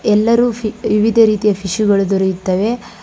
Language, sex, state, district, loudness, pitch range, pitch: Kannada, female, Karnataka, Bangalore, -15 LUFS, 195-225 Hz, 215 Hz